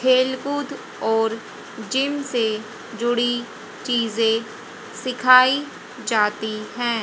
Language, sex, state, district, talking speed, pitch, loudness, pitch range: Hindi, female, Haryana, Jhajjar, 75 wpm, 235 Hz, -21 LUFS, 225-255 Hz